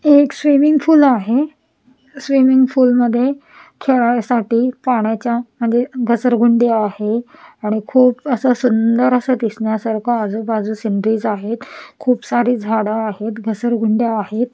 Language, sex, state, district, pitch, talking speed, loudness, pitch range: Marathi, female, Maharashtra, Washim, 240 Hz, 110 wpm, -16 LUFS, 225-255 Hz